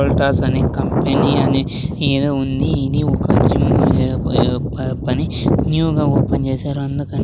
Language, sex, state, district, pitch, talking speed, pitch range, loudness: Telugu, male, Andhra Pradesh, Sri Satya Sai, 140 Hz, 155 wpm, 130-145 Hz, -17 LUFS